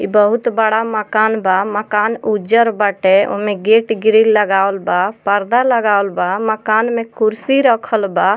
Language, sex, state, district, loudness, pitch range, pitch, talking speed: Bhojpuri, female, Bihar, Muzaffarpur, -14 LUFS, 200-225 Hz, 215 Hz, 170 wpm